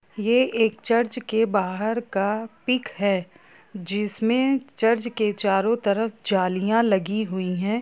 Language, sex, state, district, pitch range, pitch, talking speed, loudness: Hindi, female, Jharkhand, Sahebganj, 195-230 Hz, 220 Hz, 140 wpm, -23 LUFS